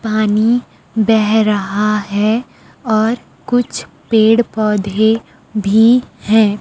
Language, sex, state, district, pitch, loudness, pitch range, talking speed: Hindi, female, Chhattisgarh, Raipur, 220 Hz, -14 LUFS, 210-225 Hz, 90 wpm